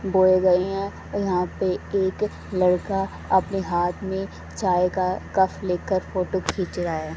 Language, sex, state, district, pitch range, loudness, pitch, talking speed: Hindi, female, Haryana, Charkhi Dadri, 180-195 Hz, -24 LUFS, 185 Hz, 150 wpm